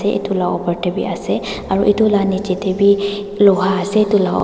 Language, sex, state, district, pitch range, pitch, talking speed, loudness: Nagamese, female, Nagaland, Dimapur, 190-205 Hz, 200 Hz, 190 wpm, -16 LUFS